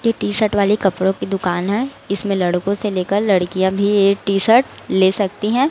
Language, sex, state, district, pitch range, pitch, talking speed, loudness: Hindi, female, Chhattisgarh, Raipur, 190-210 Hz, 200 Hz, 210 wpm, -17 LUFS